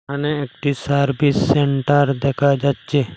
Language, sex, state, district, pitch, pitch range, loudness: Bengali, male, Assam, Hailakandi, 140 Hz, 140-145 Hz, -18 LUFS